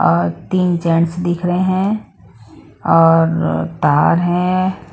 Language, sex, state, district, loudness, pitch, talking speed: Hindi, female, Punjab, Pathankot, -15 LUFS, 170 Hz, 110 wpm